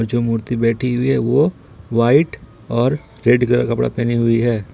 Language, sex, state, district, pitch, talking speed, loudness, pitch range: Hindi, male, Jharkhand, Ranchi, 120 Hz, 175 wpm, -17 LUFS, 115-125 Hz